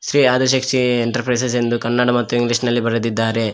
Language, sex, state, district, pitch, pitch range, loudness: Kannada, male, Karnataka, Koppal, 120 Hz, 120-125 Hz, -17 LUFS